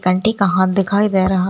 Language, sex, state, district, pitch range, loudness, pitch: Hindi, female, Rajasthan, Churu, 185-200 Hz, -16 LUFS, 190 Hz